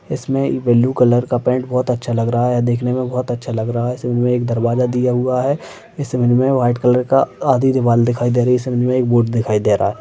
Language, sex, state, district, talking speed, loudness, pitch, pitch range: Hindi, male, Chhattisgarh, Sarguja, 270 wpm, -16 LUFS, 125 Hz, 120-125 Hz